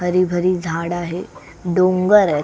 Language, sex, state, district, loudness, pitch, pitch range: Marathi, female, Maharashtra, Solapur, -18 LUFS, 180 Hz, 175-185 Hz